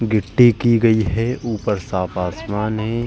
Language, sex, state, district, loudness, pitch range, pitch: Hindi, male, Uttar Pradesh, Jalaun, -18 LUFS, 105-115 Hz, 110 Hz